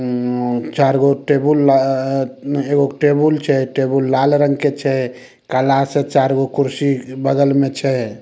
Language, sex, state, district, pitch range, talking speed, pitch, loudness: Maithili, male, Bihar, Samastipur, 130-140 Hz, 155 wpm, 135 Hz, -16 LUFS